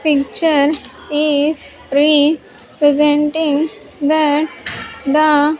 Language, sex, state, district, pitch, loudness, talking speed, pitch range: English, female, Andhra Pradesh, Sri Satya Sai, 300 Hz, -15 LUFS, 65 wpm, 290-310 Hz